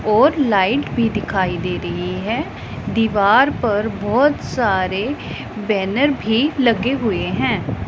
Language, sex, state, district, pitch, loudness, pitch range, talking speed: Hindi, female, Punjab, Pathankot, 215 Hz, -18 LUFS, 200-250 Hz, 120 wpm